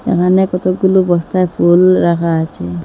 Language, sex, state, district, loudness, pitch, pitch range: Bengali, female, Assam, Hailakandi, -13 LUFS, 180 Hz, 170-185 Hz